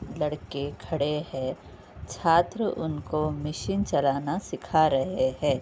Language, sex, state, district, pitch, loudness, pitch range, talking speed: Hindi, female, Uttar Pradesh, Budaun, 150 Hz, -27 LUFS, 130-160 Hz, 105 wpm